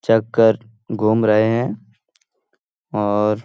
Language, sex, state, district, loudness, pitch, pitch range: Hindi, male, Bihar, Lakhisarai, -18 LUFS, 110 Hz, 105-115 Hz